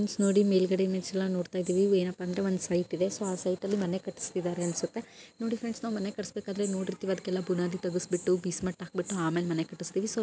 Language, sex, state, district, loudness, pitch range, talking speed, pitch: Kannada, female, Karnataka, Gulbarga, -31 LUFS, 180-200 Hz, 200 wpm, 185 Hz